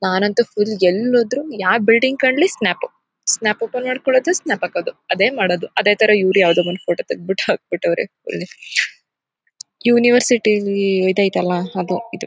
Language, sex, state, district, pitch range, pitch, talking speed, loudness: Kannada, female, Karnataka, Mysore, 190-255 Hz, 215 Hz, 135 wpm, -17 LUFS